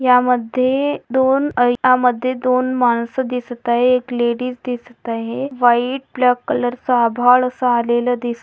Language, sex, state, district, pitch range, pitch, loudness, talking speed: Marathi, female, Maharashtra, Pune, 240-255 Hz, 250 Hz, -17 LUFS, 135 wpm